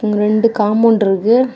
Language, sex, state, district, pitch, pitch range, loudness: Tamil, female, Tamil Nadu, Kanyakumari, 215 Hz, 210-230 Hz, -13 LUFS